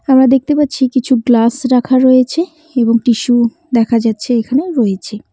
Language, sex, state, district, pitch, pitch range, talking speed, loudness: Bengali, female, West Bengal, Cooch Behar, 255 Hz, 235-265 Hz, 145 wpm, -13 LUFS